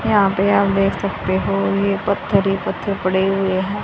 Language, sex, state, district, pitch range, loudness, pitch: Hindi, female, Haryana, Charkhi Dadri, 190-200 Hz, -18 LUFS, 195 Hz